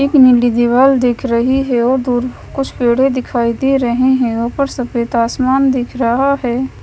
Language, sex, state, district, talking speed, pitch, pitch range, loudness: Hindi, female, Punjab, Kapurthala, 165 wpm, 255 Hz, 240-265 Hz, -14 LUFS